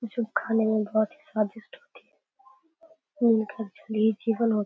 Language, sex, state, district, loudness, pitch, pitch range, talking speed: Hindi, female, Bihar, Darbhanga, -27 LUFS, 225 Hz, 220-305 Hz, 115 wpm